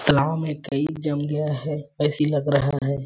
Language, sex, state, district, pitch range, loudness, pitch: Hindi, male, Chhattisgarh, Balrampur, 140-150 Hz, -24 LUFS, 145 Hz